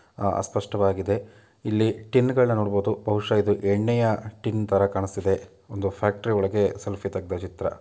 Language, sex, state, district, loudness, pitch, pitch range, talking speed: Kannada, male, Karnataka, Mysore, -25 LUFS, 105 Hz, 100-110 Hz, 125 wpm